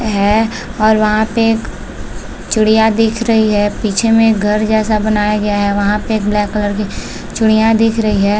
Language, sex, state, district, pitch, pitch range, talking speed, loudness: Hindi, female, Chhattisgarh, Balrampur, 215 Hz, 210-225 Hz, 195 wpm, -13 LUFS